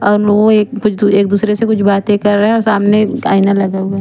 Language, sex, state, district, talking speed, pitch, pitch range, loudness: Hindi, female, Chandigarh, Chandigarh, 240 wpm, 205 Hz, 200-215 Hz, -12 LUFS